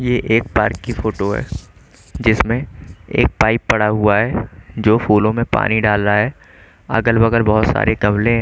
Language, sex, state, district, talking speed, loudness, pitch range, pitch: Hindi, male, Chandigarh, Chandigarh, 180 wpm, -16 LUFS, 105-115 Hz, 110 Hz